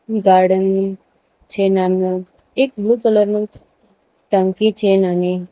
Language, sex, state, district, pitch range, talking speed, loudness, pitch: Gujarati, female, Gujarat, Valsad, 185-210 Hz, 130 wpm, -16 LUFS, 195 Hz